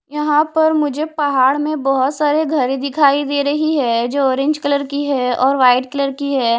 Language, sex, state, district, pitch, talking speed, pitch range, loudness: Hindi, female, Himachal Pradesh, Shimla, 285 Hz, 200 wpm, 265-300 Hz, -16 LUFS